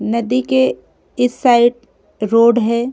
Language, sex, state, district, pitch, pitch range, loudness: Hindi, female, Uttar Pradesh, Jyotiba Phule Nagar, 240 Hz, 235-250 Hz, -15 LUFS